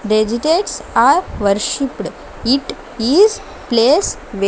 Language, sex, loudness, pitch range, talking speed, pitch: English, female, -15 LUFS, 215-280 Hz, 95 wpm, 235 Hz